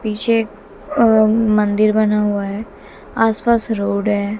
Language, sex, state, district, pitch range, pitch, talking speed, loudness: Hindi, female, Haryana, Jhajjar, 205-225 Hz, 215 Hz, 135 wpm, -16 LUFS